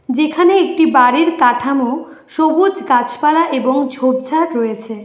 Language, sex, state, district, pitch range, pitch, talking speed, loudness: Bengali, female, West Bengal, Alipurduar, 250-320 Hz, 275 Hz, 105 wpm, -14 LUFS